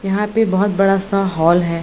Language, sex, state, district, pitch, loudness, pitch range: Hindi, female, Bihar, Gaya, 195 Hz, -16 LUFS, 175-200 Hz